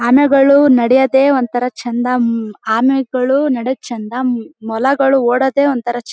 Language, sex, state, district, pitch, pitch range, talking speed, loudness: Kannada, female, Karnataka, Bellary, 255 Hz, 240-270 Hz, 105 wpm, -14 LUFS